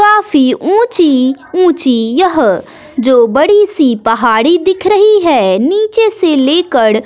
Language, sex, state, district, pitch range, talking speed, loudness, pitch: Hindi, female, Bihar, West Champaran, 255-380 Hz, 130 wpm, -10 LUFS, 320 Hz